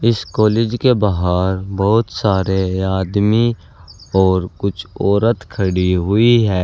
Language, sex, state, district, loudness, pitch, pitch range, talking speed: Hindi, male, Uttar Pradesh, Saharanpur, -16 LUFS, 95 Hz, 95-110 Hz, 115 wpm